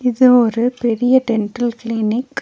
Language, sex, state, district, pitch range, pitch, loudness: Tamil, female, Tamil Nadu, Nilgiris, 230-250 Hz, 240 Hz, -16 LUFS